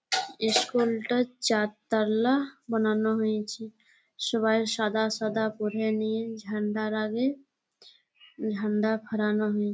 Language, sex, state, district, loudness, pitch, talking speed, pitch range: Bengali, female, West Bengal, Malda, -28 LUFS, 220 Hz, 100 wpm, 215-230 Hz